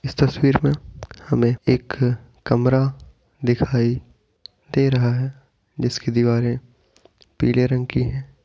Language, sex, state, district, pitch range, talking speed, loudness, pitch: Hindi, male, Uttar Pradesh, Etah, 120-135 Hz, 120 wpm, -21 LUFS, 125 Hz